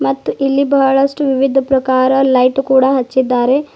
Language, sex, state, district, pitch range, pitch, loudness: Kannada, female, Karnataka, Bidar, 260-275 Hz, 270 Hz, -13 LUFS